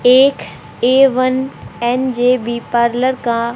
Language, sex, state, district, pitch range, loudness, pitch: Hindi, male, Haryana, Rohtak, 235-260 Hz, -15 LUFS, 250 Hz